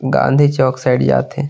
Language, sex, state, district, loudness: Chhattisgarhi, male, Chhattisgarh, Sarguja, -14 LUFS